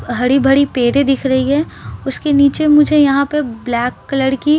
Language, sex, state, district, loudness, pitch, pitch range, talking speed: Hindi, female, Bihar, Patna, -14 LUFS, 275 Hz, 260-295 Hz, 195 wpm